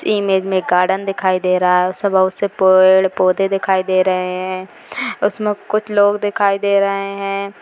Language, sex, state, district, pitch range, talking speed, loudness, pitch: Hindi, female, Bihar, Madhepura, 185-200 Hz, 190 wpm, -16 LUFS, 190 Hz